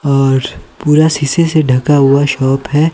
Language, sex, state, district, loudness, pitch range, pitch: Hindi, male, Himachal Pradesh, Shimla, -11 LUFS, 135-155 Hz, 145 Hz